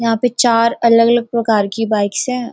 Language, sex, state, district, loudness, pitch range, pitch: Hindi, female, Uttarakhand, Uttarkashi, -14 LUFS, 225-240 Hz, 230 Hz